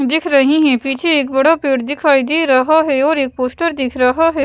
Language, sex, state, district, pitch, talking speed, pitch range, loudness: Hindi, female, Bihar, West Champaran, 280 Hz, 230 wpm, 265-315 Hz, -14 LUFS